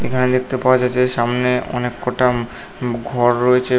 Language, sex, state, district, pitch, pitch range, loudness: Bengali, male, West Bengal, North 24 Parganas, 125 Hz, 120-125 Hz, -18 LUFS